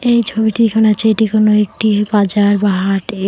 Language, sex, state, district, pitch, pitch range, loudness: Bengali, female, West Bengal, Alipurduar, 215 Hz, 205-220 Hz, -13 LUFS